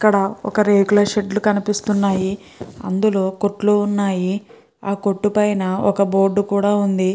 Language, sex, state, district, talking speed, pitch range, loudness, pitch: Telugu, female, Andhra Pradesh, Guntur, 115 wpm, 195-210 Hz, -18 LUFS, 205 Hz